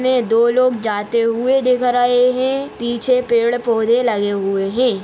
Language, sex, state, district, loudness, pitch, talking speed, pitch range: Hindi, female, Maharashtra, Nagpur, -16 LUFS, 240 Hz, 155 wpm, 230-250 Hz